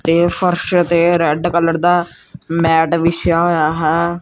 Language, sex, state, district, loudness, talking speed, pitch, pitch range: Punjabi, male, Punjab, Kapurthala, -15 LUFS, 140 wpm, 170 Hz, 165-175 Hz